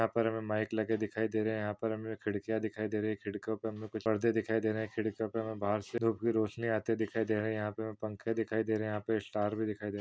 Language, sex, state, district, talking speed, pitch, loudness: Hindi, male, Maharashtra, Aurangabad, 325 wpm, 110 Hz, -35 LUFS